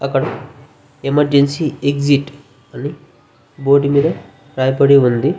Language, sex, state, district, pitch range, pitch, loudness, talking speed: Telugu, male, Andhra Pradesh, Visakhapatnam, 135-145 Hz, 140 Hz, -15 LUFS, 90 wpm